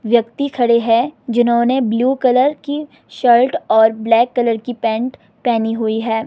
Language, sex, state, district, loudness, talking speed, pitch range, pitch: Hindi, female, Himachal Pradesh, Shimla, -16 LUFS, 155 wpm, 225-260 Hz, 235 Hz